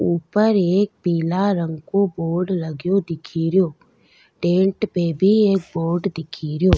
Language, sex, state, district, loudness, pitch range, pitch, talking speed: Rajasthani, female, Rajasthan, Nagaur, -20 LUFS, 165-195 Hz, 180 Hz, 125 wpm